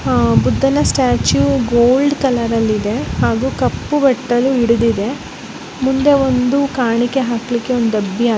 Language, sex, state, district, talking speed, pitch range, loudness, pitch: Kannada, male, Karnataka, Bellary, 130 wpm, 230-270 Hz, -15 LUFS, 245 Hz